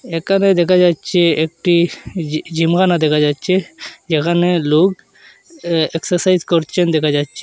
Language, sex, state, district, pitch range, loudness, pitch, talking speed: Bengali, male, Assam, Hailakandi, 160-180 Hz, -15 LUFS, 170 Hz, 115 wpm